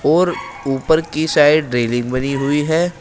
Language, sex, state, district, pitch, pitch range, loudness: Hindi, male, Uttar Pradesh, Shamli, 150 Hz, 135-160 Hz, -17 LUFS